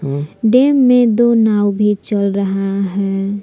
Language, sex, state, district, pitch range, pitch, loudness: Hindi, female, Jharkhand, Palamu, 195-230 Hz, 205 Hz, -14 LUFS